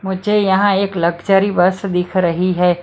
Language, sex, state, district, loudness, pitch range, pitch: Hindi, female, Maharashtra, Mumbai Suburban, -15 LUFS, 180-195 Hz, 185 Hz